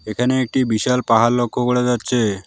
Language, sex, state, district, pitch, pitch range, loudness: Bengali, male, West Bengal, Alipurduar, 125 Hz, 115-125 Hz, -18 LUFS